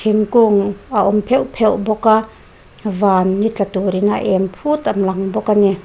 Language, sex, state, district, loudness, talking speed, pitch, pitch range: Mizo, female, Mizoram, Aizawl, -16 LUFS, 195 wpm, 205 Hz, 195-215 Hz